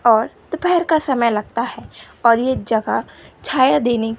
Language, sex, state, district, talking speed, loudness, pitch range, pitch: Hindi, female, Gujarat, Gandhinagar, 160 wpm, -18 LUFS, 230-295 Hz, 240 Hz